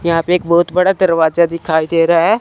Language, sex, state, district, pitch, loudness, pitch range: Hindi, male, Chandigarh, Chandigarh, 170 Hz, -13 LUFS, 165-180 Hz